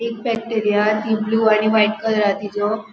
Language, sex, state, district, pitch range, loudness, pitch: Konkani, female, Goa, North and South Goa, 210-225 Hz, -18 LUFS, 215 Hz